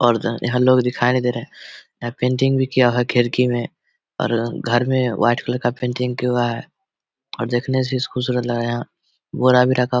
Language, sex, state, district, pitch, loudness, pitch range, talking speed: Hindi, male, Bihar, Samastipur, 125 Hz, -19 LUFS, 120-125 Hz, 210 wpm